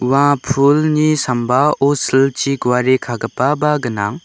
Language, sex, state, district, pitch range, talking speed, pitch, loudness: Garo, male, Meghalaya, West Garo Hills, 125-145 Hz, 100 wpm, 135 Hz, -15 LUFS